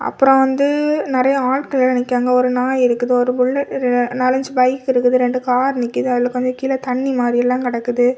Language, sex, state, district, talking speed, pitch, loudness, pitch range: Tamil, female, Tamil Nadu, Kanyakumari, 175 wpm, 255 Hz, -17 LUFS, 250-265 Hz